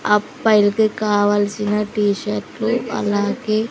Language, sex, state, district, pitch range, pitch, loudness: Telugu, female, Andhra Pradesh, Sri Satya Sai, 205-215 Hz, 210 Hz, -19 LUFS